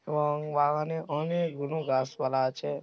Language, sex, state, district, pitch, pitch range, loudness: Bengali, male, West Bengal, Malda, 150 Hz, 140-155 Hz, -29 LUFS